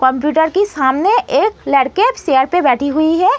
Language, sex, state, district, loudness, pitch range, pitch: Hindi, female, Uttar Pradesh, Muzaffarnagar, -14 LUFS, 270-390 Hz, 310 Hz